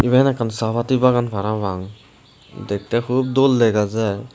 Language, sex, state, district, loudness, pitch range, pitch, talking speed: Chakma, male, Tripura, Unakoti, -19 LUFS, 105-125 Hz, 115 Hz, 150 wpm